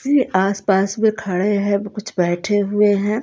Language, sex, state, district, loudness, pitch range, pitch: Hindi, female, Punjab, Kapurthala, -18 LUFS, 195-210 Hz, 205 Hz